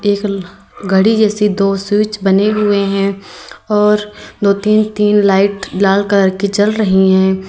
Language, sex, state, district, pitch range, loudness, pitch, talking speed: Hindi, female, Uttar Pradesh, Lalitpur, 195-210 Hz, -13 LUFS, 200 Hz, 150 wpm